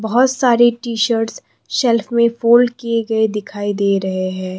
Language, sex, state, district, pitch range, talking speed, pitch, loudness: Hindi, female, Assam, Kamrup Metropolitan, 205-235 Hz, 170 wpm, 230 Hz, -16 LUFS